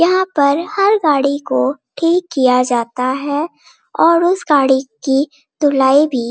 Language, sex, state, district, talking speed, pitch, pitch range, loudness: Hindi, female, Bihar, Bhagalpur, 150 wpm, 285 Hz, 265-335 Hz, -15 LUFS